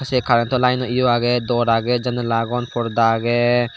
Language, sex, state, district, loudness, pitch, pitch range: Chakma, male, Tripura, Dhalai, -18 LUFS, 120 Hz, 115-125 Hz